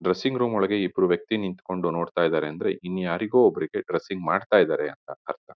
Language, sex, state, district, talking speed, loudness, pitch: Kannada, male, Karnataka, Mysore, 185 wpm, -25 LUFS, 105 Hz